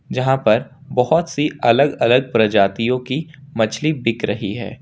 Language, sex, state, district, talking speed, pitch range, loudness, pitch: Hindi, male, Jharkhand, Ranchi, 150 wpm, 115-140 Hz, -18 LUFS, 125 Hz